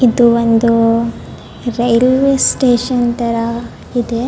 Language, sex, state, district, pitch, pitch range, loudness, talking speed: Kannada, female, Karnataka, Bellary, 235 Hz, 230-245 Hz, -13 LUFS, 100 wpm